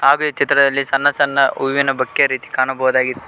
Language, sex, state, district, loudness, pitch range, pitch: Kannada, male, Karnataka, Koppal, -16 LUFS, 130-140 Hz, 135 Hz